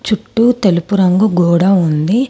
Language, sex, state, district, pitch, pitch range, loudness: Telugu, female, Telangana, Komaram Bheem, 195 Hz, 175-215 Hz, -12 LUFS